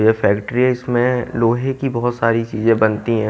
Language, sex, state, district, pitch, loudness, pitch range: Hindi, male, Haryana, Jhajjar, 115 Hz, -17 LUFS, 110-125 Hz